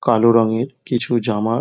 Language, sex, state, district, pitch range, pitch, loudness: Bengali, male, West Bengal, Dakshin Dinajpur, 110-120 Hz, 115 Hz, -18 LUFS